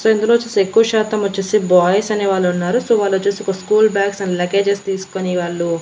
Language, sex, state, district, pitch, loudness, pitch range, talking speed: Telugu, female, Andhra Pradesh, Annamaya, 200 Hz, -16 LUFS, 185-215 Hz, 205 wpm